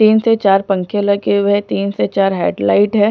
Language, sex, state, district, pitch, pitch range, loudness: Hindi, female, Punjab, Pathankot, 200 Hz, 145-205 Hz, -14 LUFS